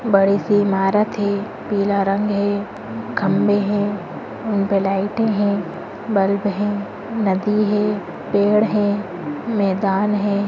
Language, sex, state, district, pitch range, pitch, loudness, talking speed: Bhojpuri, female, Uttar Pradesh, Gorakhpur, 195-210 Hz, 205 Hz, -19 LUFS, 115 wpm